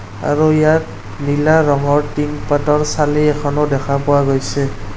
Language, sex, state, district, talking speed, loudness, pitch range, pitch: Assamese, male, Assam, Kamrup Metropolitan, 135 wpm, -15 LUFS, 140-150 Hz, 145 Hz